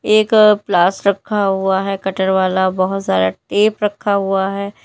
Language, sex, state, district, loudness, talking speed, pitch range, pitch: Hindi, female, Uttar Pradesh, Lalitpur, -16 LUFS, 160 wpm, 190-205 Hz, 195 Hz